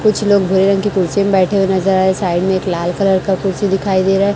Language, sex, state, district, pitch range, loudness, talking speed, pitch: Hindi, female, Chhattisgarh, Raipur, 190-200 Hz, -14 LUFS, 290 wpm, 190 Hz